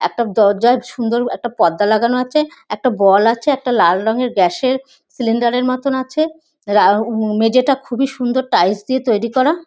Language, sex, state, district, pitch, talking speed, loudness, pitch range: Bengali, female, West Bengal, North 24 Parganas, 240 Hz, 180 wpm, -16 LUFS, 220-260 Hz